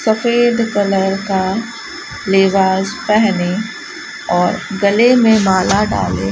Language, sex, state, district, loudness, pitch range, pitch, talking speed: Hindi, male, Rajasthan, Bikaner, -14 LUFS, 190-235 Hz, 205 Hz, 105 wpm